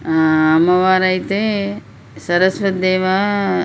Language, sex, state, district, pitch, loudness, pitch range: Telugu, female, Telangana, Nalgonda, 185 Hz, -15 LUFS, 155-190 Hz